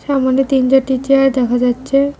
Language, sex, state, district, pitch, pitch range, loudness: Bengali, female, West Bengal, Cooch Behar, 265 Hz, 260-275 Hz, -14 LUFS